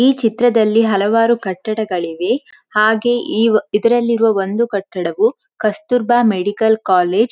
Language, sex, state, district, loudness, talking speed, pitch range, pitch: Kannada, female, Karnataka, Dakshina Kannada, -16 LUFS, 115 wpm, 205-235 Hz, 220 Hz